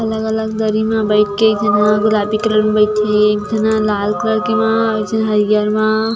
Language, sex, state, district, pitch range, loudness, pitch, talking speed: Chhattisgarhi, female, Chhattisgarh, Jashpur, 210-220 Hz, -15 LUFS, 215 Hz, 235 wpm